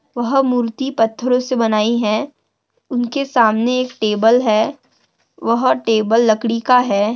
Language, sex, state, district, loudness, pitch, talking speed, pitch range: Hindi, female, Maharashtra, Dhule, -16 LUFS, 235 Hz, 135 wpm, 225-255 Hz